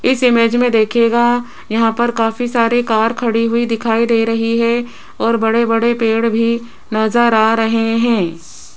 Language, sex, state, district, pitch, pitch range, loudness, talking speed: Hindi, female, Rajasthan, Jaipur, 230 Hz, 225-235 Hz, -15 LUFS, 165 wpm